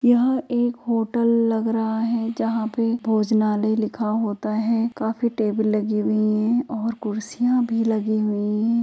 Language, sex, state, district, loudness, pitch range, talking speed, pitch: Hindi, female, Uttar Pradesh, Jyotiba Phule Nagar, -22 LUFS, 215-235 Hz, 165 wpm, 225 Hz